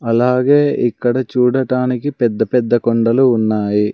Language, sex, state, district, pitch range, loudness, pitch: Telugu, male, Andhra Pradesh, Sri Satya Sai, 115-130 Hz, -15 LUFS, 125 Hz